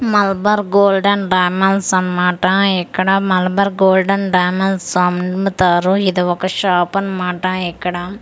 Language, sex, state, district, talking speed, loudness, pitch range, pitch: Telugu, female, Andhra Pradesh, Manyam, 115 wpm, -15 LUFS, 180-195 Hz, 185 Hz